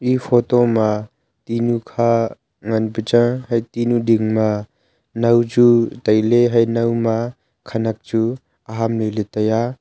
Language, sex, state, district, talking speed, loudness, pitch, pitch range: Wancho, male, Arunachal Pradesh, Longding, 130 wpm, -18 LUFS, 115 Hz, 110-120 Hz